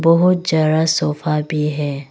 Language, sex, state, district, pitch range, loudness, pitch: Hindi, female, Arunachal Pradesh, Longding, 150-165 Hz, -17 LUFS, 155 Hz